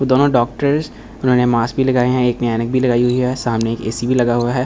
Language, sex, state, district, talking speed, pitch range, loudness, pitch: Hindi, male, Delhi, New Delhi, 270 wpm, 120-130 Hz, -16 LUFS, 125 Hz